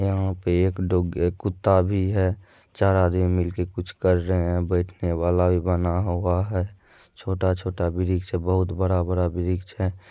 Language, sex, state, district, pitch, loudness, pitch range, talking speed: Maithili, male, Bihar, Madhepura, 90 Hz, -24 LUFS, 90-95 Hz, 165 wpm